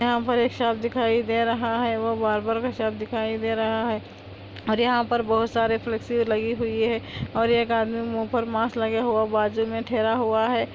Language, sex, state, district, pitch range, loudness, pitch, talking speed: Hindi, female, Andhra Pradesh, Anantapur, 220-235 Hz, -24 LUFS, 225 Hz, 225 wpm